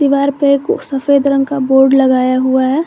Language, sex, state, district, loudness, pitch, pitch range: Hindi, female, Jharkhand, Garhwa, -12 LUFS, 275 Hz, 265-280 Hz